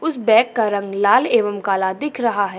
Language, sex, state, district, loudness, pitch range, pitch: Hindi, female, Uttar Pradesh, Jyotiba Phule Nagar, -18 LUFS, 200-235 Hz, 215 Hz